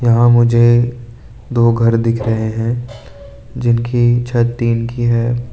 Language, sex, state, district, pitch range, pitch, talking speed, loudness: Hindi, male, Arunachal Pradesh, Lower Dibang Valley, 115-120 Hz, 120 Hz, 130 wpm, -14 LUFS